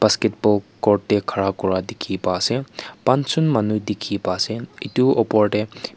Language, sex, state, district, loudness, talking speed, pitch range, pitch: Nagamese, male, Nagaland, Kohima, -20 LUFS, 150 wpm, 95-120 Hz, 105 Hz